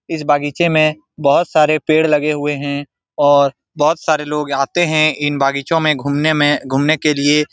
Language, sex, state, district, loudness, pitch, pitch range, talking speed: Hindi, male, Bihar, Saran, -15 LUFS, 150 Hz, 145-155 Hz, 185 wpm